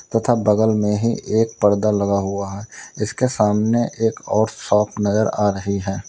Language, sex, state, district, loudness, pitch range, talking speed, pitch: Hindi, male, Uttar Pradesh, Lalitpur, -19 LUFS, 100-115 Hz, 175 wpm, 105 Hz